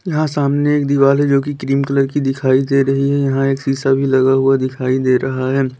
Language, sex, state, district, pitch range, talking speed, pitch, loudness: Hindi, male, Uttar Pradesh, Lalitpur, 135-140 Hz, 240 wpm, 135 Hz, -15 LUFS